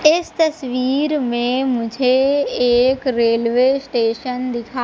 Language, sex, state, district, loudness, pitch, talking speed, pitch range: Hindi, female, Madhya Pradesh, Katni, -18 LUFS, 255 Hz, 100 wpm, 240-275 Hz